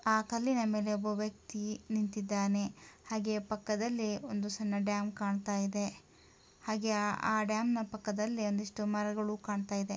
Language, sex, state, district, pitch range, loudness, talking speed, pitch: Kannada, female, Karnataka, Mysore, 205-220 Hz, -35 LUFS, 120 wpm, 210 Hz